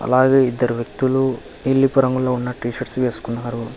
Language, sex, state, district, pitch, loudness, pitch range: Telugu, male, Telangana, Hyderabad, 125 Hz, -19 LUFS, 120-130 Hz